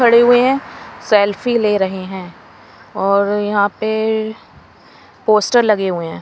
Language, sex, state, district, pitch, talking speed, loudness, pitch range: Hindi, female, Bihar, West Champaran, 210 Hz, 135 wpm, -15 LUFS, 195-225 Hz